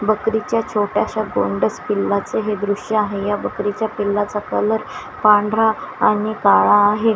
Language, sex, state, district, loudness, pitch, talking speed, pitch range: Marathi, female, Maharashtra, Washim, -18 LUFS, 210 Hz, 125 wpm, 205-215 Hz